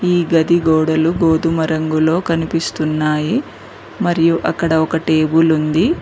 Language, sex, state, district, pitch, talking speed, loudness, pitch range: Telugu, female, Telangana, Mahabubabad, 160 Hz, 110 wpm, -15 LUFS, 160-165 Hz